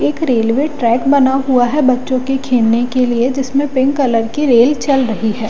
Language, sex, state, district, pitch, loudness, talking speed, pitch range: Hindi, female, Delhi, New Delhi, 260 Hz, -14 LUFS, 205 wpm, 235-275 Hz